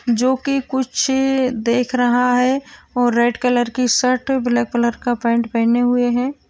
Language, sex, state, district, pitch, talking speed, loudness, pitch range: Hindi, female, Uttar Pradesh, Hamirpur, 245 Hz, 155 wpm, -18 LUFS, 240-260 Hz